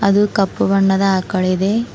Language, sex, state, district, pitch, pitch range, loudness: Kannada, female, Karnataka, Bidar, 195 Hz, 190-205 Hz, -16 LUFS